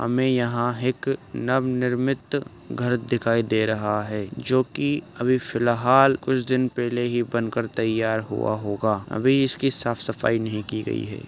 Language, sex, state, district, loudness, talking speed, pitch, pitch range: Hindi, male, Uttar Pradesh, Ghazipur, -23 LUFS, 155 wpm, 120 Hz, 110-130 Hz